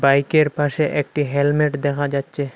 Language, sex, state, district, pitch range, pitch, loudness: Bengali, male, Assam, Hailakandi, 140-150 Hz, 145 Hz, -19 LUFS